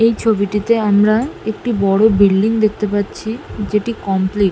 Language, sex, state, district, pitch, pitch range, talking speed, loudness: Bengali, female, West Bengal, North 24 Parganas, 210 Hz, 200-220 Hz, 135 wpm, -16 LUFS